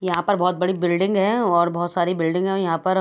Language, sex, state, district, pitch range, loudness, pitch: Hindi, female, Odisha, Khordha, 175-190 Hz, -21 LUFS, 180 Hz